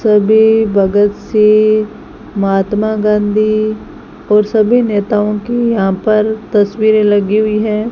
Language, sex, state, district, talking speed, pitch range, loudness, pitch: Hindi, female, Rajasthan, Bikaner, 115 wpm, 205-215 Hz, -12 LUFS, 215 Hz